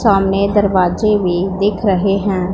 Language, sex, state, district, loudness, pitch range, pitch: Hindi, female, Punjab, Pathankot, -15 LUFS, 190-205 Hz, 195 Hz